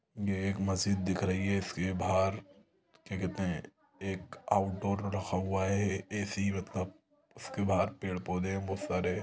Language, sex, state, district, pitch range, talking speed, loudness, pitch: Hindi, male, Chhattisgarh, Sukma, 95-100 Hz, 160 wpm, -34 LUFS, 95 Hz